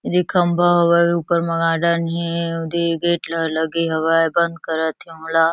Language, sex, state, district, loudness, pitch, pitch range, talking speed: Chhattisgarhi, female, Chhattisgarh, Kabirdham, -18 LUFS, 165 Hz, 165-170 Hz, 140 wpm